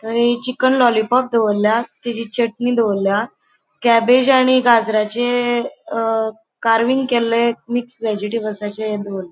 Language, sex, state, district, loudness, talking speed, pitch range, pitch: Konkani, female, Goa, North and South Goa, -17 LUFS, 115 wpm, 220-245 Hz, 235 Hz